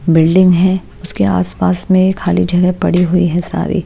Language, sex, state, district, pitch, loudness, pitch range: Hindi, female, Haryana, Jhajjar, 180 Hz, -13 LUFS, 160-185 Hz